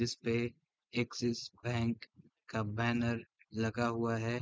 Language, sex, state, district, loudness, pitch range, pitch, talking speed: Hindi, male, Chhattisgarh, Raigarh, -36 LUFS, 115-120 Hz, 115 Hz, 110 wpm